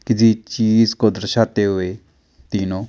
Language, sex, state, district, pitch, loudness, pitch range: Hindi, male, Chandigarh, Chandigarh, 105 Hz, -18 LUFS, 95-115 Hz